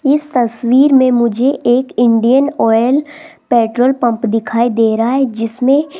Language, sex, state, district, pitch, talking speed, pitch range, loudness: Hindi, female, Rajasthan, Jaipur, 245 Hz, 150 wpm, 230-275 Hz, -13 LUFS